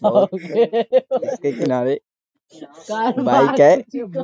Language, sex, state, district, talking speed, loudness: Hindi, male, Bihar, Jamui, 85 wpm, -18 LUFS